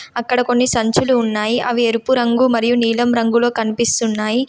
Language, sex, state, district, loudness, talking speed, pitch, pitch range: Telugu, female, Telangana, Komaram Bheem, -16 LUFS, 145 wpm, 235 Hz, 230-245 Hz